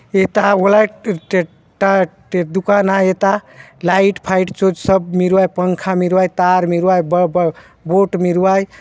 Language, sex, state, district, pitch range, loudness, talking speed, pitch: Halbi, male, Chhattisgarh, Bastar, 180-195 Hz, -15 LUFS, 115 wpm, 185 Hz